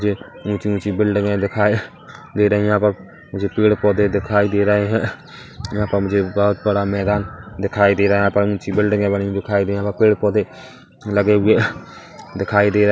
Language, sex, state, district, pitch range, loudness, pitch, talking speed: Hindi, male, Chhattisgarh, Kabirdham, 100-105 Hz, -18 LUFS, 105 Hz, 200 wpm